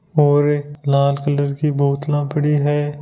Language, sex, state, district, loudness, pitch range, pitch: Hindi, male, Rajasthan, Nagaur, -18 LUFS, 145-150 Hz, 145 Hz